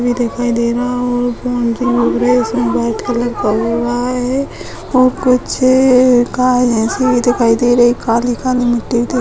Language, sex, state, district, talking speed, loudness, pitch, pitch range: Hindi, female, Bihar, Bhagalpur, 180 wpm, -14 LUFS, 245 Hz, 235-250 Hz